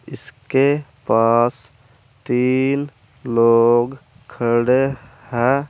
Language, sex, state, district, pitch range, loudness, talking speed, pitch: Hindi, male, Uttar Pradesh, Saharanpur, 120-130 Hz, -18 LUFS, 65 wpm, 125 Hz